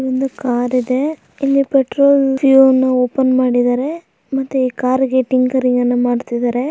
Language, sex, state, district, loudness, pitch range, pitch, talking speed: Kannada, female, Karnataka, Raichur, -15 LUFS, 250-270 Hz, 260 Hz, 135 wpm